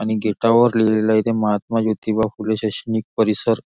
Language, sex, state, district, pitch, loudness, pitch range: Marathi, male, Maharashtra, Nagpur, 110 Hz, -19 LUFS, 110-115 Hz